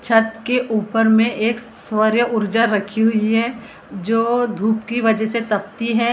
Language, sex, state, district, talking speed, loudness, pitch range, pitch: Hindi, female, Maharashtra, Gondia, 185 wpm, -18 LUFS, 220-235 Hz, 225 Hz